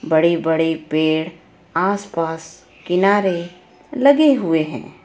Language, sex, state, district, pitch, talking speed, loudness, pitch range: Hindi, female, Jharkhand, Ranchi, 170 Hz, 95 wpm, -18 LUFS, 160-195 Hz